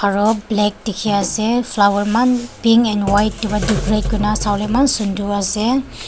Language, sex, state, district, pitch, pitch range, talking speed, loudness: Nagamese, female, Nagaland, Dimapur, 215 Hz, 205-225 Hz, 160 wpm, -17 LUFS